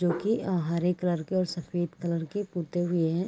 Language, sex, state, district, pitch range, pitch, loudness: Hindi, female, Chhattisgarh, Raigarh, 170-180 Hz, 175 Hz, -29 LUFS